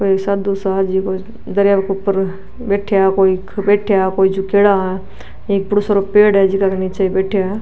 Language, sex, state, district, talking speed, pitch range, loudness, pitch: Marwari, female, Rajasthan, Nagaur, 180 wpm, 190-200 Hz, -15 LUFS, 195 Hz